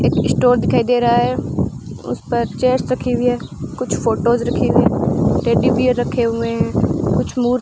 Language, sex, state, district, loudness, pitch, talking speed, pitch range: Hindi, female, Rajasthan, Bikaner, -17 LUFS, 245 Hz, 190 wpm, 235-250 Hz